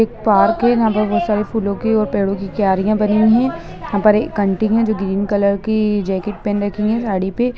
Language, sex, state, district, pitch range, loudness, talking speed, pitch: Hindi, female, Bihar, Gaya, 200-220 Hz, -17 LUFS, 240 wpm, 210 Hz